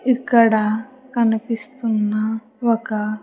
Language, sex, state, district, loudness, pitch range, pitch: Telugu, female, Andhra Pradesh, Sri Satya Sai, -20 LUFS, 215-240 Hz, 225 Hz